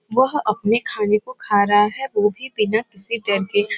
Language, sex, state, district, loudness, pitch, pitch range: Hindi, female, Uttar Pradesh, Varanasi, -20 LUFS, 210 Hz, 205-235 Hz